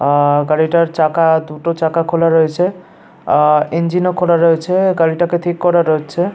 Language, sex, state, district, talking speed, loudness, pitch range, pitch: Bengali, male, West Bengal, Paschim Medinipur, 140 wpm, -14 LUFS, 155-175 Hz, 165 Hz